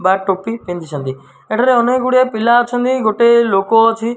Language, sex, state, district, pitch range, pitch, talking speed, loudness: Odia, male, Odisha, Malkangiri, 195-240 Hz, 230 Hz, 160 wpm, -14 LUFS